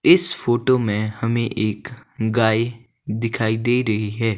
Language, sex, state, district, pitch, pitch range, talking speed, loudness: Hindi, male, Himachal Pradesh, Shimla, 115 Hz, 110-120 Hz, 135 wpm, -20 LUFS